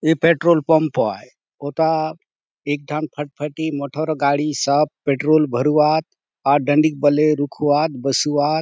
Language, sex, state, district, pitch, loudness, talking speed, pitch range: Halbi, male, Chhattisgarh, Bastar, 150 Hz, -19 LUFS, 125 wpm, 145-155 Hz